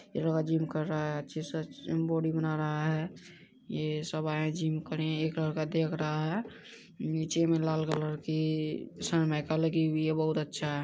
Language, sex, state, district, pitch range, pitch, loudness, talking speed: Hindi, male, Bihar, Madhepura, 155-160 Hz, 155 Hz, -32 LUFS, 200 wpm